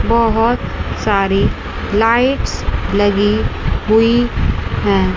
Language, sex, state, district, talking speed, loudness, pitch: Hindi, female, Chandigarh, Chandigarh, 70 wpm, -15 LUFS, 205 Hz